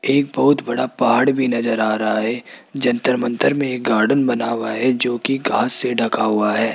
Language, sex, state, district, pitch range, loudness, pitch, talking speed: Hindi, male, Rajasthan, Jaipur, 110-130 Hz, -18 LUFS, 120 Hz, 215 wpm